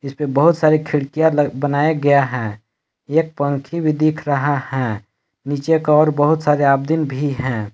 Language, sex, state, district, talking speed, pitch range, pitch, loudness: Hindi, male, Jharkhand, Palamu, 170 wpm, 135-155 Hz, 145 Hz, -17 LUFS